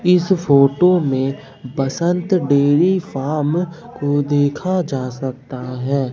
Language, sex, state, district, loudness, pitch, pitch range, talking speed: Hindi, male, Bihar, Katihar, -18 LUFS, 145 Hz, 135-175 Hz, 110 wpm